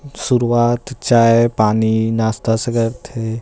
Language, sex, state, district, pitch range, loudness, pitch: Chhattisgarhi, male, Chhattisgarh, Rajnandgaon, 110-120 Hz, -16 LUFS, 115 Hz